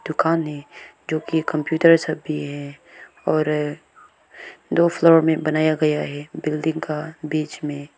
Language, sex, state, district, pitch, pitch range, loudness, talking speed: Hindi, female, Arunachal Pradesh, Lower Dibang Valley, 155 Hz, 150-160 Hz, -21 LUFS, 145 wpm